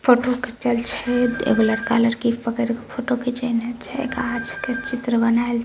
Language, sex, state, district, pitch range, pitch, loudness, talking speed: Maithili, female, Bihar, Samastipur, 235-250 Hz, 240 Hz, -21 LUFS, 180 wpm